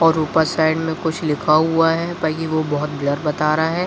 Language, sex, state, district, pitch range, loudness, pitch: Hindi, male, Bihar, Jahanabad, 155-165 Hz, -19 LUFS, 160 Hz